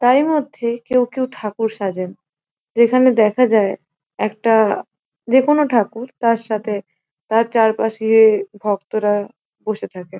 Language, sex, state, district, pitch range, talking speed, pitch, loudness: Bengali, female, West Bengal, North 24 Parganas, 205-240 Hz, 130 wpm, 220 Hz, -17 LUFS